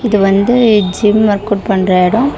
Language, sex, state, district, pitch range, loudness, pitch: Tamil, female, Tamil Nadu, Chennai, 195-220 Hz, -11 LUFS, 205 Hz